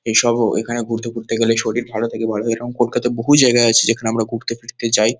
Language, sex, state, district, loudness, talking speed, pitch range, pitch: Bengali, male, West Bengal, North 24 Parganas, -17 LUFS, 205 wpm, 115-120 Hz, 115 Hz